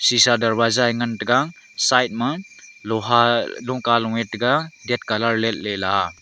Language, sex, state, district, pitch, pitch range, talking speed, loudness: Wancho, male, Arunachal Pradesh, Longding, 120 Hz, 115-125 Hz, 135 wpm, -20 LUFS